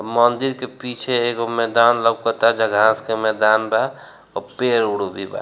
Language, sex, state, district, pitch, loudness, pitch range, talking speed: Bhojpuri, male, Bihar, Gopalganj, 115 Hz, -18 LUFS, 110-120 Hz, 165 wpm